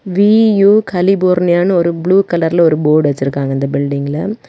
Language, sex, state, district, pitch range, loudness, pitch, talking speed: Tamil, female, Tamil Nadu, Kanyakumari, 150-195 Hz, -12 LUFS, 175 Hz, 145 wpm